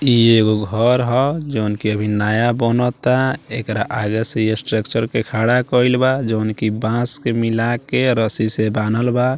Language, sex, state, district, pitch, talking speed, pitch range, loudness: Bhojpuri, male, Bihar, Muzaffarpur, 115 Hz, 180 wpm, 110-125 Hz, -17 LUFS